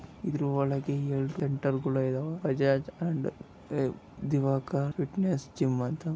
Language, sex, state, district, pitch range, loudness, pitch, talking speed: Kannada, male, Karnataka, Bellary, 135-155 Hz, -30 LUFS, 140 Hz, 105 wpm